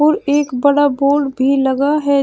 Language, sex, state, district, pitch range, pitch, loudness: Hindi, female, Uttar Pradesh, Shamli, 275-290 Hz, 285 Hz, -15 LUFS